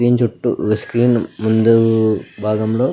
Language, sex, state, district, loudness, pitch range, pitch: Telugu, male, Andhra Pradesh, Anantapur, -16 LUFS, 110-120 Hz, 115 Hz